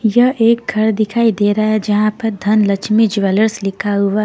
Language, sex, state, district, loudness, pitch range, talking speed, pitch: Hindi, female, Haryana, Rohtak, -15 LUFS, 205-220 Hz, 200 wpm, 215 Hz